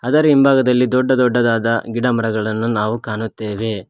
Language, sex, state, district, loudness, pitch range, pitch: Kannada, male, Karnataka, Koppal, -17 LUFS, 110-125 Hz, 115 Hz